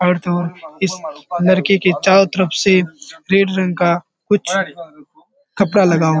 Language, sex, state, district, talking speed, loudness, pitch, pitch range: Hindi, male, Bihar, Kishanganj, 155 wpm, -16 LUFS, 185 Hz, 175-195 Hz